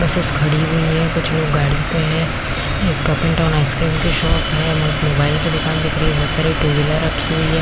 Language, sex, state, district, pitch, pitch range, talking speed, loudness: Hindi, female, Chhattisgarh, Bastar, 160 Hz, 150-160 Hz, 220 wpm, -17 LUFS